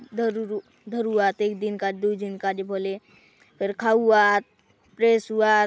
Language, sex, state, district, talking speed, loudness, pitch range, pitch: Halbi, female, Chhattisgarh, Bastar, 135 wpm, -24 LUFS, 200-220 Hz, 210 Hz